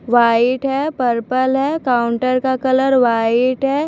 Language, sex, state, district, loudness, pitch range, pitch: Hindi, female, Maharashtra, Washim, -16 LUFS, 240-270 Hz, 255 Hz